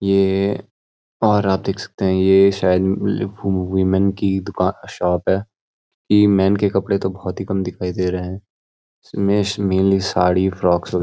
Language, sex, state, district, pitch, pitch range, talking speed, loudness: Hindi, male, Uttarakhand, Uttarkashi, 95 Hz, 95-100 Hz, 170 wpm, -18 LUFS